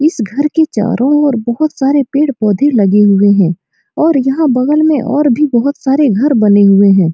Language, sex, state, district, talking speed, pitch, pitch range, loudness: Hindi, female, Bihar, Supaul, 195 wpm, 270 Hz, 210-295 Hz, -11 LUFS